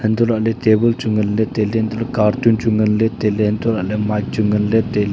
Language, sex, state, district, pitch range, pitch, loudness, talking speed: Wancho, male, Arunachal Pradesh, Longding, 105-115 Hz, 110 Hz, -17 LUFS, 185 wpm